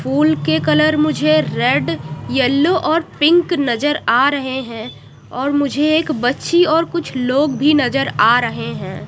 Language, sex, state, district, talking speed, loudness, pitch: Hindi, female, Odisha, Malkangiri, 160 wpm, -16 LUFS, 275 Hz